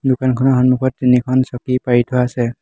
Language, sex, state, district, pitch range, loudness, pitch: Assamese, male, Assam, Hailakandi, 125-130 Hz, -16 LUFS, 125 Hz